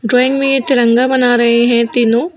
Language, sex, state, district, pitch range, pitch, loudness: Hindi, female, Uttar Pradesh, Shamli, 235-260 Hz, 245 Hz, -12 LUFS